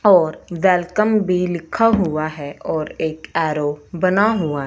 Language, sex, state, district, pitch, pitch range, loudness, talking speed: Hindi, female, Punjab, Fazilka, 170 Hz, 155-190 Hz, -19 LUFS, 140 wpm